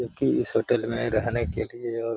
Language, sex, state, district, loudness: Hindi, male, Bihar, Gaya, -26 LUFS